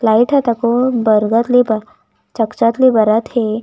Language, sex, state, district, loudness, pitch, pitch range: Chhattisgarhi, female, Chhattisgarh, Raigarh, -14 LUFS, 230 Hz, 220-245 Hz